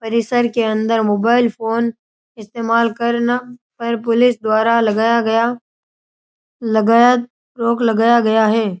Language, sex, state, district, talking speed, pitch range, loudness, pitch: Rajasthani, male, Rajasthan, Churu, 115 wpm, 225-235 Hz, -16 LUFS, 230 Hz